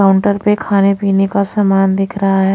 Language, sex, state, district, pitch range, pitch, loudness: Hindi, female, Haryana, Rohtak, 195-200 Hz, 195 Hz, -13 LUFS